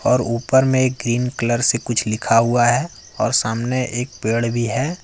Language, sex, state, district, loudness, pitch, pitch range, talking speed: Hindi, male, Jharkhand, Ranchi, -18 LUFS, 120 Hz, 115-130 Hz, 190 wpm